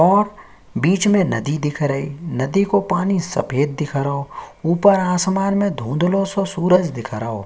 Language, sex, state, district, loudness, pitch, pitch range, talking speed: Hindi, male, Uttarakhand, Tehri Garhwal, -19 LUFS, 170 Hz, 140-195 Hz, 160 wpm